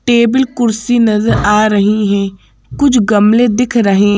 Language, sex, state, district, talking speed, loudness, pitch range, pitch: Hindi, female, Madhya Pradesh, Bhopal, 145 wpm, -11 LUFS, 205-240 Hz, 215 Hz